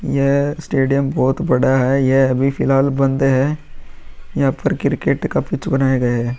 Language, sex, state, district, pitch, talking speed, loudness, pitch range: Hindi, male, Uttar Pradesh, Muzaffarnagar, 135 Hz, 170 wpm, -17 LUFS, 130-140 Hz